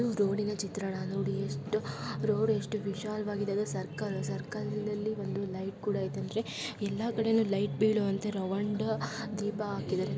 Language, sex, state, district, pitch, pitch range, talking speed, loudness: Kannada, female, Karnataka, Belgaum, 205 Hz, 195-215 Hz, 140 wpm, -33 LUFS